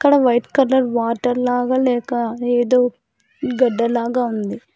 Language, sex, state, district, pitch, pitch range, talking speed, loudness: Telugu, female, Telangana, Hyderabad, 245 Hz, 235-255 Hz, 125 wpm, -18 LUFS